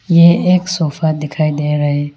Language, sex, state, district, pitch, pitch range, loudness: Hindi, female, Arunachal Pradesh, Lower Dibang Valley, 155 Hz, 150-170 Hz, -14 LUFS